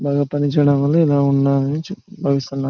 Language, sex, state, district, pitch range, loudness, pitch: Telugu, male, Andhra Pradesh, Chittoor, 140-150 Hz, -17 LUFS, 145 Hz